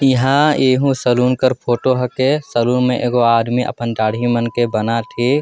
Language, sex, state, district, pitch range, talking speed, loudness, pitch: Sadri, male, Chhattisgarh, Jashpur, 120-130 Hz, 190 wpm, -16 LUFS, 125 Hz